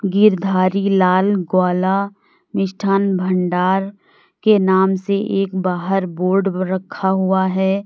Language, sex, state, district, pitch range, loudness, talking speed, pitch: Hindi, female, Uttar Pradesh, Lalitpur, 185-195 Hz, -17 LUFS, 105 wpm, 190 Hz